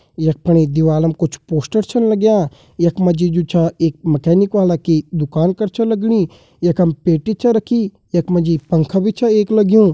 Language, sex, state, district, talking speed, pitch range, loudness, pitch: Hindi, male, Uttarakhand, Uttarkashi, 195 wpm, 160-215 Hz, -16 LUFS, 175 Hz